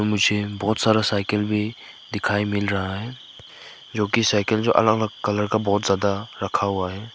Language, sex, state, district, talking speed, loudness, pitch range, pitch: Hindi, male, Nagaland, Kohima, 185 wpm, -22 LUFS, 100-110 Hz, 105 Hz